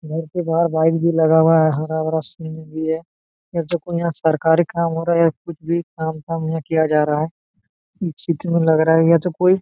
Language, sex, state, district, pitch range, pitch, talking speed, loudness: Hindi, male, Jharkhand, Jamtara, 160-170 Hz, 165 Hz, 220 wpm, -19 LUFS